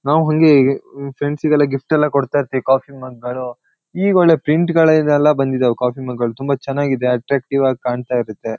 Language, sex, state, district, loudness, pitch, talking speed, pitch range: Kannada, male, Karnataka, Shimoga, -16 LUFS, 135 Hz, 155 wpm, 125-150 Hz